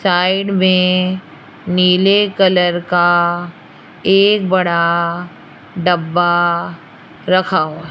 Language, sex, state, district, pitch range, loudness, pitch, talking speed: Hindi, female, Rajasthan, Jaipur, 175-185 Hz, -14 LUFS, 180 Hz, 75 wpm